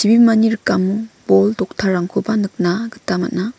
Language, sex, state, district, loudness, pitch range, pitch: Garo, female, Meghalaya, West Garo Hills, -17 LUFS, 180-225 Hz, 200 Hz